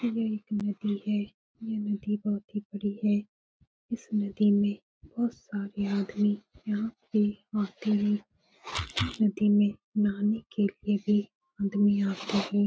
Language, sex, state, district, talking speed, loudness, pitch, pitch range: Hindi, female, Bihar, Supaul, 140 wpm, -29 LUFS, 210 Hz, 205-210 Hz